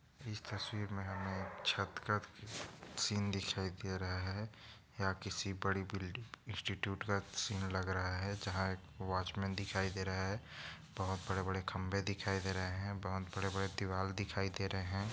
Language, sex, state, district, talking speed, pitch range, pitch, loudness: Hindi, male, Maharashtra, Nagpur, 175 wpm, 95-100 Hz, 95 Hz, -40 LUFS